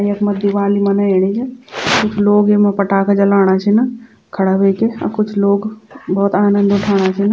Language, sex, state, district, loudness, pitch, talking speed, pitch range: Garhwali, female, Uttarakhand, Tehri Garhwal, -14 LUFS, 200 Hz, 155 wpm, 200-210 Hz